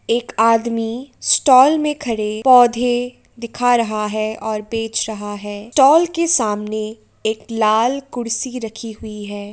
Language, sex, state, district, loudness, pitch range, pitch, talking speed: Hindi, female, Uttar Pradesh, Jalaun, -17 LUFS, 215-245 Hz, 230 Hz, 140 wpm